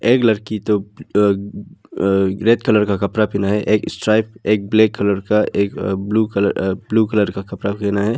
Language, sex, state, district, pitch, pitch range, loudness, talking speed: Hindi, male, Arunachal Pradesh, Lower Dibang Valley, 105 Hz, 100-110 Hz, -18 LUFS, 200 wpm